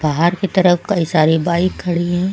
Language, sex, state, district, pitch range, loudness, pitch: Hindi, female, Uttar Pradesh, Lucknow, 170-185 Hz, -16 LUFS, 175 Hz